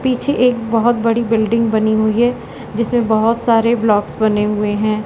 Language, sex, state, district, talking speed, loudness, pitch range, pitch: Hindi, female, Madhya Pradesh, Katni, 180 wpm, -15 LUFS, 215-235 Hz, 225 Hz